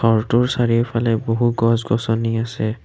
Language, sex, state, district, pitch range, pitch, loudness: Assamese, male, Assam, Kamrup Metropolitan, 115-120 Hz, 115 Hz, -19 LUFS